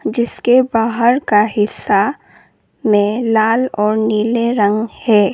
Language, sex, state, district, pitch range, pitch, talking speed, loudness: Hindi, female, Arunachal Pradesh, Lower Dibang Valley, 210-235 Hz, 220 Hz, 110 wpm, -15 LUFS